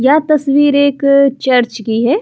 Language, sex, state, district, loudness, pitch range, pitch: Hindi, female, Chhattisgarh, Kabirdham, -12 LUFS, 250-285 Hz, 275 Hz